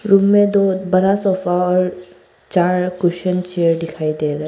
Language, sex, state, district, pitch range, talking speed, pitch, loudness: Hindi, female, Arunachal Pradesh, Papum Pare, 175-190 Hz, 175 wpm, 180 Hz, -17 LUFS